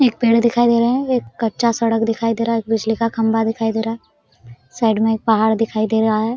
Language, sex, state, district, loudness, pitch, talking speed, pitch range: Hindi, female, Jharkhand, Sahebganj, -17 LUFS, 225 Hz, 275 wpm, 220-230 Hz